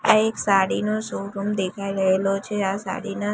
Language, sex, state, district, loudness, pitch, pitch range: Gujarati, female, Gujarat, Gandhinagar, -23 LUFS, 200 Hz, 195-210 Hz